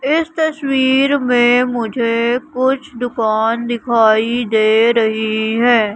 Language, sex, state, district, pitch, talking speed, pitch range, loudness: Hindi, female, Madhya Pradesh, Katni, 240 Hz, 100 wpm, 225-260 Hz, -15 LUFS